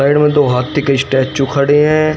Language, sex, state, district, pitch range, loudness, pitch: Hindi, male, Haryana, Rohtak, 135-150 Hz, -13 LUFS, 140 Hz